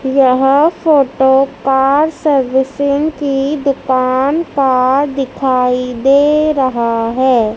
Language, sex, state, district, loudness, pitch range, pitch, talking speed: Hindi, female, Madhya Pradesh, Dhar, -13 LUFS, 260-285 Hz, 270 Hz, 85 wpm